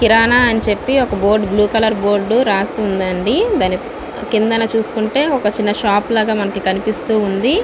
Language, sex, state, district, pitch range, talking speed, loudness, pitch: Telugu, female, Andhra Pradesh, Visakhapatnam, 205-230 Hz, 135 wpm, -15 LUFS, 220 Hz